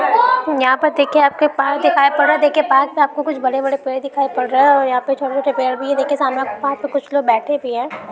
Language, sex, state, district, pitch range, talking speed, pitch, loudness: Hindi, female, Uttar Pradesh, Budaun, 265-290 Hz, 290 wpm, 280 Hz, -16 LUFS